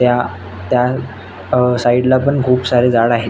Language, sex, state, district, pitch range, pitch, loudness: Marathi, male, Maharashtra, Nagpur, 115-125 Hz, 125 Hz, -15 LUFS